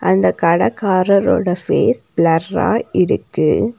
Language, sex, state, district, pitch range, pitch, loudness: Tamil, female, Tamil Nadu, Nilgiris, 165-200 Hz, 185 Hz, -16 LUFS